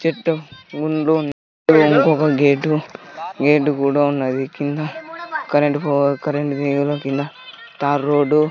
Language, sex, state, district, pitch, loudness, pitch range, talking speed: Telugu, male, Andhra Pradesh, Sri Satya Sai, 145 Hz, -18 LUFS, 145-155 Hz, 115 wpm